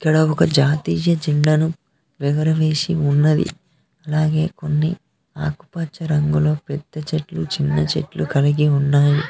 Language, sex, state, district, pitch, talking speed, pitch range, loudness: Telugu, male, Telangana, Mahabubabad, 150 Hz, 105 wpm, 145-155 Hz, -19 LUFS